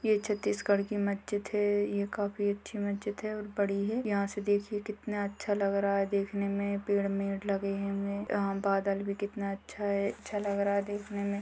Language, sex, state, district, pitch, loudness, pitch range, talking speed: Hindi, female, Chhattisgarh, Bastar, 200 Hz, -32 LUFS, 200-205 Hz, 210 wpm